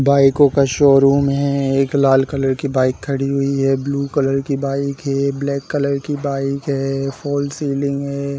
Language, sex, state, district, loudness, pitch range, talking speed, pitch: Hindi, male, Chhattisgarh, Balrampur, -17 LUFS, 135-140 Hz, 180 wpm, 140 Hz